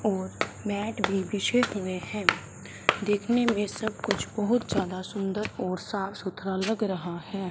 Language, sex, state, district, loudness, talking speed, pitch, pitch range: Hindi, male, Punjab, Fazilka, -28 LUFS, 150 wpm, 200 Hz, 190-215 Hz